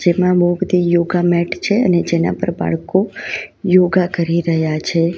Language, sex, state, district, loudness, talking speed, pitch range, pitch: Gujarati, female, Gujarat, Valsad, -16 LUFS, 160 wpm, 170-180 Hz, 175 Hz